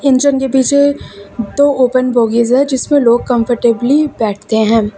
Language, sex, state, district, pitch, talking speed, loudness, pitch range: Hindi, female, Uttar Pradesh, Lucknow, 250 Hz, 145 wpm, -12 LUFS, 230-275 Hz